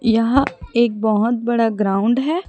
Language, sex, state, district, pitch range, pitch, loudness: Hindi, female, Chhattisgarh, Raipur, 220-250 Hz, 235 Hz, -18 LUFS